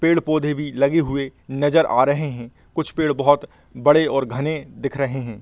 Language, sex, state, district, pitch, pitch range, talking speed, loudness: Hindi, male, Jharkhand, Sahebganj, 145 Hz, 135-155 Hz, 200 wpm, -20 LUFS